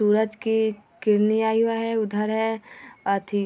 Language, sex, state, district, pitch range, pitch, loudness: Hindi, female, Bihar, Vaishali, 210-220 Hz, 220 Hz, -23 LUFS